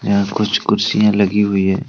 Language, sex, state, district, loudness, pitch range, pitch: Hindi, male, Jharkhand, Deoghar, -15 LUFS, 100-105 Hz, 100 Hz